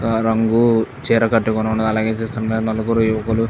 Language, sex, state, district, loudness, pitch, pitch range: Telugu, male, Andhra Pradesh, Chittoor, -18 LUFS, 110 Hz, 110-115 Hz